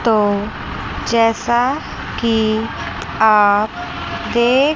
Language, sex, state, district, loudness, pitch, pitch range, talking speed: Hindi, female, Chandigarh, Chandigarh, -17 LUFS, 225 Hz, 215-235 Hz, 65 wpm